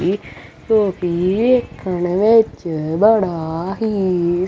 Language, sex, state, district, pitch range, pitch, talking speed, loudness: Punjabi, male, Punjab, Kapurthala, 175-215 Hz, 185 Hz, 80 wpm, -17 LUFS